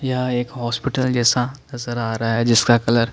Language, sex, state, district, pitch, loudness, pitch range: Hindi, male, Chandigarh, Chandigarh, 120 Hz, -19 LUFS, 115-125 Hz